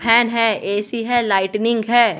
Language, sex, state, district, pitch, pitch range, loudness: Hindi, male, Bihar, West Champaran, 230 Hz, 205-235 Hz, -17 LUFS